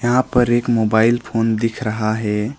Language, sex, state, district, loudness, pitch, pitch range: Hindi, male, West Bengal, Alipurduar, -18 LUFS, 115 Hz, 110-120 Hz